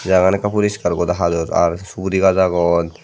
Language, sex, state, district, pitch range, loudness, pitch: Chakma, male, Tripura, Dhalai, 85-95 Hz, -17 LUFS, 95 Hz